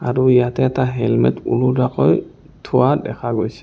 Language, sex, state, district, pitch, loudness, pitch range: Assamese, male, Assam, Kamrup Metropolitan, 125 Hz, -17 LUFS, 115-130 Hz